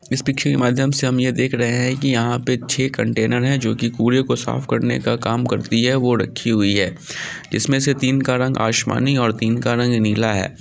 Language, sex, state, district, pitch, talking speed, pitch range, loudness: Angika, male, Bihar, Samastipur, 125 Hz, 230 wpm, 115-130 Hz, -19 LUFS